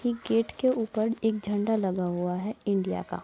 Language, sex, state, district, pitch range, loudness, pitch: Hindi, female, Uttar Pradesh, Muzaffarnagar, 190-225 Hz, -28 LUFS, 215 Hz